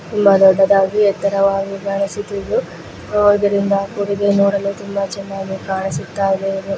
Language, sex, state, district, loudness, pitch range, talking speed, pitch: Kannada, female, Karnataka, Raichur, -17 LUFS, 195-200 Hz, 95 wpm, 200 Hz